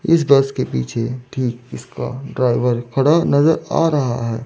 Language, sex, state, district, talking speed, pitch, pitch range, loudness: Hindi, male, Chandigarh, Chandigarh, 160 wpm, 130 Hz, 120-140 Hz, -18 LUFS